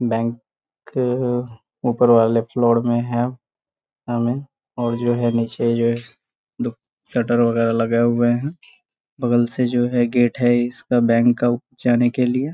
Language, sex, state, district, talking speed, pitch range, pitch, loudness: Hindi, male, Bihar, Saharsa, 140 wpm, 120-125 Hz, 120 Hz, -19 LUFS